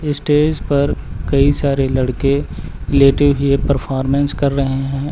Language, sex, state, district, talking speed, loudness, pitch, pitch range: Hindi, male, Uttar Pradesh, Lucknow, 130 wpm, -16 LUFS, 140 Hz, 135-145 Hz